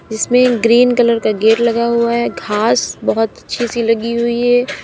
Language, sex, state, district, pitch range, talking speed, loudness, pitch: Hindi, female, Uttar Pradesh, Lalitpur, 225-240 Hz, 185 wpm, -14 LUFS, 235 Hz